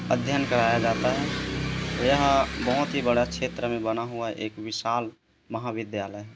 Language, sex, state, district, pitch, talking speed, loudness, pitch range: Hindi, male, Chhattisgarh, Korba, 115 Hz, 150 wpm, -26 LUFS, 110-120 Hz